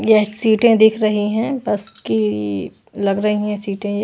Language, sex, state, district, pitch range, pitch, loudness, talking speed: Hindi, female, Maharashtra, Washim, 200-220 Hz, 210 Hz, -18 LUFS, 180 wpm